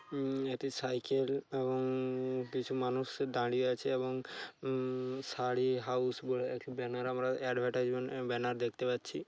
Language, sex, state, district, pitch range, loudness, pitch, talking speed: Bengali, male, West Bengal, Paschim Medinipur, 125-130 Hz, -36 LUFS, 130 Hz, 150 wpm